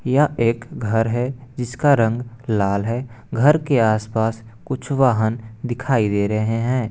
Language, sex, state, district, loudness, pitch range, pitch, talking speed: Hindi, male, Bihar, Gopalganj, -20 LUFS, 110-130 Hz, 115 Hz, 145 wpm